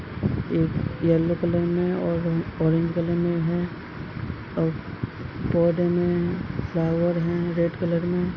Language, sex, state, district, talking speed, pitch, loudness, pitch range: Hindi, male, Uttar Pradesh, Etah, 130 wpm, 170 Hz, -25 LUFS, 160-175 Hz